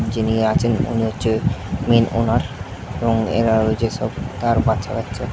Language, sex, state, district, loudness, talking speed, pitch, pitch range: Bengali, male, West Bengal, Jhargram, -19 LUFS, 135 wpm, 110 Hz, 110-115 Hz